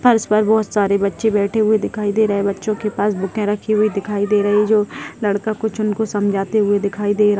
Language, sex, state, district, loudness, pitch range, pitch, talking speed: Hindi, female, Bihar, Jahanabad, -18 LUFS, 205-215 Hz, 210 Hz, 250 wpm